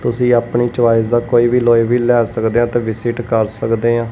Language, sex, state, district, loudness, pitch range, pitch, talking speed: Punjabi, male, Punjab, Kapurthala, -15 LUFS, 115-120 Hz, 120 Hz, 235 wpm